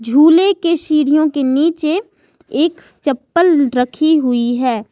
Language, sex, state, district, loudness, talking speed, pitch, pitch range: Hindi, female, Jharkhand, Ranchi, -14 LUFS, 120 wpm, 305 Hz, 260-335 Hz